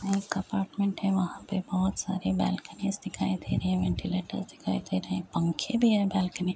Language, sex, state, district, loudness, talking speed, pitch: Hindi, female, Uttar Pradesh, Jyotiba Phule Nagar, -30 LUFS, 200 wpm, 190 Hz